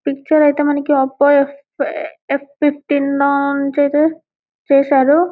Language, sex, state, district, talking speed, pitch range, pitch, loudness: Telugu, female, Telangana, Karimnagar, 70 wpm, 280-300 Hz, 285 Hz, -15 LUFS